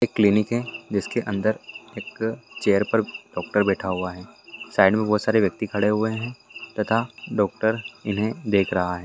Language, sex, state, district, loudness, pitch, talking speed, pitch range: Hindi, male, Bihar, Purnia, -23 LUFS, 105 Hz, 185 wpm, 100-110 Hz